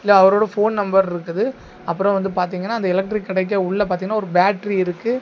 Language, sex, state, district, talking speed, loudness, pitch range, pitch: Tamil, male, Tamil Nadu, Kanyakumari, 185 wpm, -19 LUFS, 185-205 Hz, 195 Hz